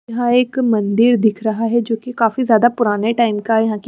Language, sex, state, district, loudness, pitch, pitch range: Hindi, female, Haryana, Charkhi Dadri, -16 LUFS, 230 Hz, 220-240 Hz